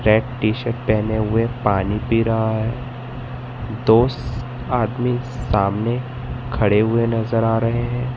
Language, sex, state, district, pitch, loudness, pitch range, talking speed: Hindi, male, Madhya Pradesh, Katni, 115 Hz, -20 LUFS, 110-125 Hz, 130 wpm